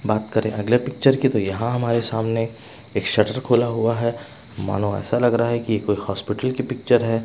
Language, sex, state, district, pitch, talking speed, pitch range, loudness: Hindi, male, Bihar, West Champaran, 115 Hz, 215 wpm, 105-120 Hz, -21 LUFS